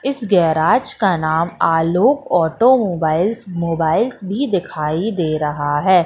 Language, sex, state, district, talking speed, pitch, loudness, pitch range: Hindi, female, Madhya Pradesh, Katni, 120 wpm, 175 Hz, -17 LUFS, 160-220 Hz